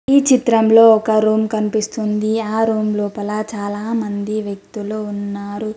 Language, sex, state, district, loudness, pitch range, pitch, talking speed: Telugu, female, Telangana, Mahabubabad, -17 LUFS, 210-220 Hz, 215 Hz, 125 wpm